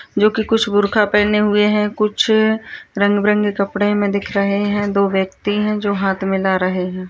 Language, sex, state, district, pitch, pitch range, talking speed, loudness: Hindi, female, Bihar, Kishanganj, 205 Hz, 200-210 Hz, 185 wpm, -17 LUFS